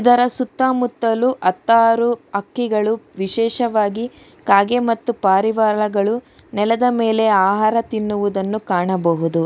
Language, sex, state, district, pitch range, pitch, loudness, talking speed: Kannada, female, Karnataka, Bangalore, 200-240 Hz, 220 Hz, -18 LUFS, 90 wpm